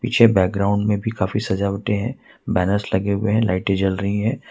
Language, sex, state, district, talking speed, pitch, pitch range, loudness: Hindi, male, Jharkhand, Ranchi, 200 wpm, 100 Hz, 95-110 Hz, -20 LUFS